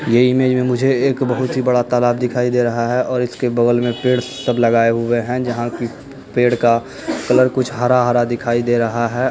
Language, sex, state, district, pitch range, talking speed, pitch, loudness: Hindi, male, Bihar, Begusarai, 120-125 Hz, 205 wpm, 125 Hz, -17 LUFS